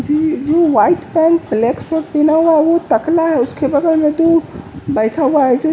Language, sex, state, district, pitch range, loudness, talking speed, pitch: Hindi, male, Bihar, West Champaran, 290-330 Hz, -14 LUFS, 210 wpm, 315 Hz